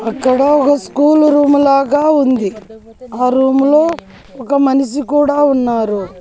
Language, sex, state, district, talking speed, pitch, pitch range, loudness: Telugu, female, Andhra Pradesh, Annamaya, 115 wpm, 275 Hz, 245-290 Hz, -12 LUFS